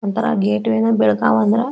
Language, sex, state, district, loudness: Kannada, female, Karnataka, Belgaum, -16 LUFS